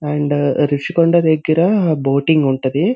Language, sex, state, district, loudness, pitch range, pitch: Telugu, male, Andhra Pradesh, Visakhapatnam, -15 LUFS, 145-170 Hz, 155 Hz